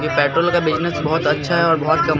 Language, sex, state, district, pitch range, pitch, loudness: Hindi, male, Bihar, Katihar, 155-170 Hz, 160 Hz, -17 LUFS